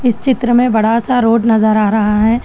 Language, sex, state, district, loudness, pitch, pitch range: Hindi, female, Telangana, Hyderabad, -12 LUFS, 230 Hz, 220-245 Hz